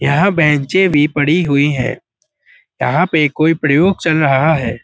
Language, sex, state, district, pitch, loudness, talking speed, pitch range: Hindi, male, Uttar Pradesh, Budaun, 150 Hz, -13 LUFS, 160 wpm, 140-165 Hz